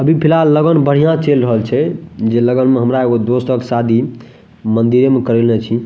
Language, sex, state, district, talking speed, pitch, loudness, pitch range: Maithili, male, Bihar, Madhepura, 195 wpm, 125 Hz, -13 LUFS, 115-140 Hz